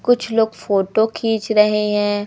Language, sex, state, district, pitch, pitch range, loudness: Hindi, male, Madhya Pradesh, Umaria, 220 Hz, 205-225 Hz, -17 LUFS